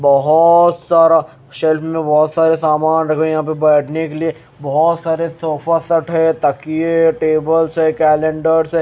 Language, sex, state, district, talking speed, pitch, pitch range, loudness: Hindi, male, Haryana, Jhajjar, 165 wpm, 160 Hz, 155-165 Hz, -14 LUFS